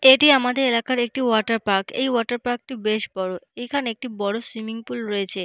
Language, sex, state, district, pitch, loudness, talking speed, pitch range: Bengali, female, West Bengal, Paschim Medinipur, 235 Hz, -22 LUFS, 200 wpm, 215-255 Hz